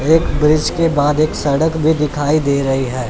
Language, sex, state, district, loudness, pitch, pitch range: Hindi, male, Chandigarh, Chandigarh, -15 LUFS, 150 Hz, 140-155 Hz